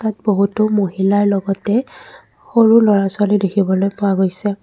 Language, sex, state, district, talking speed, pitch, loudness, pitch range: Assamese, female, Assam, Kamrup Metropolitan, 115 wpm, 205 Hz, -16 LUFS, 195-220 Hz